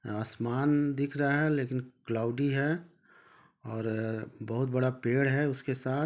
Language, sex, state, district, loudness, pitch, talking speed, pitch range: Hindi, male, Jharkhand, Sahebganj, -31 LUFS, 130 Hz, 140 wpm, 115-145 Hz